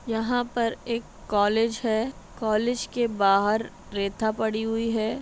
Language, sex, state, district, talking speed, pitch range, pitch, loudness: Hindi, female, Bihar, Madhepura, 140 wpm, 215-230 Hz, 225 Hz, -26 LUFS